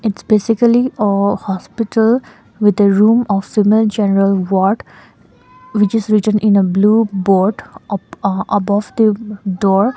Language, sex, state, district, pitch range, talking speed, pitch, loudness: English, female, Sikkim, Gangtok, 195-220 Hz, 140 wpm, 210 Hz, -14 LUFS